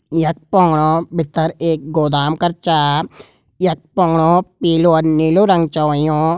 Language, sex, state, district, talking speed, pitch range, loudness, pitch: Garhwali, male, Uttarakhand, Uttarkashi, 140 wpm, 155-170 Hz, -15 LUFS, 165 Hz